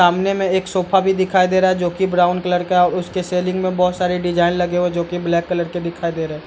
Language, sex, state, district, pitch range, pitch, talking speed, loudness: Hindi, male, Bihar, Darbhanga, 175-185 Hz, 180 Hz, 295 wpm, -18 LUFS